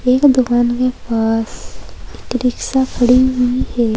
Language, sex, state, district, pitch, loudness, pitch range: Hindi, female, Uttar Pradesh, Saharanpur, 250 Hz, -15 LUFS, 240-255 Hz